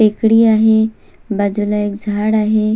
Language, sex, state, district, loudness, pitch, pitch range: Marathi, female, Maharashtra, Sindhudurg, -14 LUFS, 215 Hz, 210-220 Hz